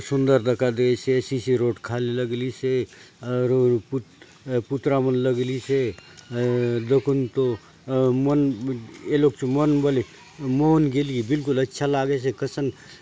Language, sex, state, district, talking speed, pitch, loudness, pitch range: Halbi, male, Chhattisgarh, Bastar, 130 wpm, 130 Hz, -23 LUFS, 125-140 Hz